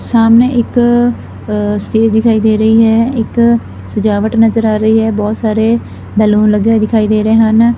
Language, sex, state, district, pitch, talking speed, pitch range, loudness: Punjabi, female, Punjab, Fazilka, 220 Hz, 170 wpm, 215-230 Hz, -11 LUFS